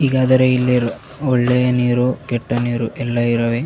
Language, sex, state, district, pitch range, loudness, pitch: Kannada, male, Karnataka, Bellary, 120-130 Hz, -17 LUFS, 125 Hz